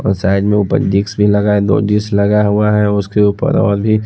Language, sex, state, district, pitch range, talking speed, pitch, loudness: Hindi, male, Odisha, Khordha, 100-105 Hz, 250 wpm, 105 Hz, -13 LUFS